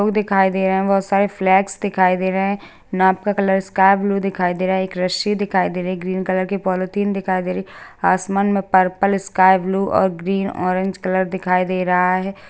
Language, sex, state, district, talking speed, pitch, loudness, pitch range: Hindi, female, Bihar, Jahanabad, 215 wpm, 190 Hz, -18 LUFS, 185-195 Hz